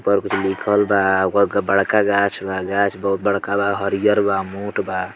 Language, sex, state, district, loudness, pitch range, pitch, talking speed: Bhojpuri, male, Bihar, Muzaffarpur, -19 LUFS, 95-100 Hz, 100 Hz, 185 wpm